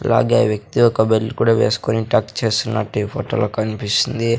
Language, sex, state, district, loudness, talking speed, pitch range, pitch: Telugu, male, Andhra Pradesh, Sri Satya Sai, -18 LUFS, 150 wpm, 110-115 Hz, 110 Hz